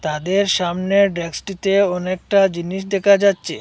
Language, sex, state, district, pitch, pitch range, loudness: Bengali, male, Assam, Hailakandi, 195 Hz, 180-200 Hz, -18 LUFS